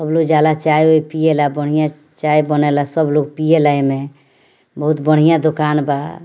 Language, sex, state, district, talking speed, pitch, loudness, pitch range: Bhojpuri, female, Bihar, Muzaffarpur, 210 wpm, 150 Hz, -15 LUFS, 145-155 Hz